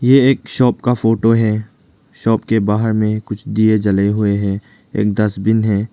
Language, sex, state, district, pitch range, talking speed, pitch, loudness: Hindi, male, Arunachal Pradesh, Lower Dibang Valley, 105-115 Hz, 180 wpm, 110 Hz, -16 LUFS